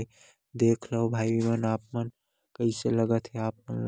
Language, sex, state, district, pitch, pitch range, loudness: Hindi, male, Chhattisgarh, Korba, 115 Hz, 110-115 Hz, -29 LUFS